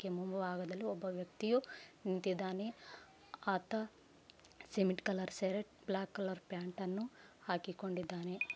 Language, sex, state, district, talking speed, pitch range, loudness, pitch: Kannada, female, Karnataka, Raichur, 100 wpm, 185-200 Hz, -41 LUFS, 190 Hz